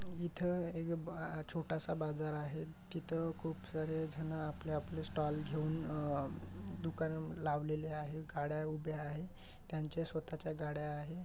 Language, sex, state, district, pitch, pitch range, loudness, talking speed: Marathi, male, Maharashtra, Chandrapur, 155 Hz, 150-160 Hz, -41 LUFS, 135 wpm